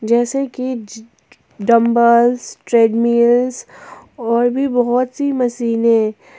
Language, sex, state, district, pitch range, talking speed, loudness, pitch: Hindi, female, Jharkhand, Ranchi, 230-250 Hz, 85 wpm, -15 LUFS, 235 Hz